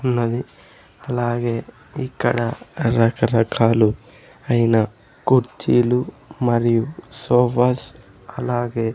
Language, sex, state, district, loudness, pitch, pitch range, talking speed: Telugu, male, Andhra Pradesh, Sri Satya Sai, -20 LUFS, 120 Hz, 115-125 Hz, 60 wpm